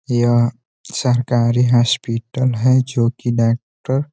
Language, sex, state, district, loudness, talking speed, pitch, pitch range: Hindi, male, Uttar Pradesh, Ghazipur, -17 LUFS, 100 wpm, 120 Hz, 120-130 Hz